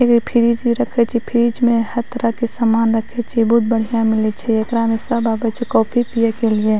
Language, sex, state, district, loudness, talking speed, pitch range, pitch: Maithili, female, Bihar, Madhepura, -17 LUFS, 230 wpm, 225-235 Hz, 230 Hz